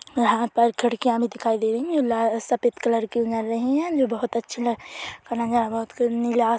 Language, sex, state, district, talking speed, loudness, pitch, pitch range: Hindi, female, Chhattisgarh, Korba, 180 wpm, -23 LUFS, 235 Hz, 230-240 Hz